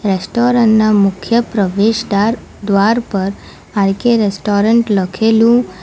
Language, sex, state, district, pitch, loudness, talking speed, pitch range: Gujarati, female, Gujarat, Valsad, 210 Hz, -13 LUFS, 115 wpm, 200-230 Hz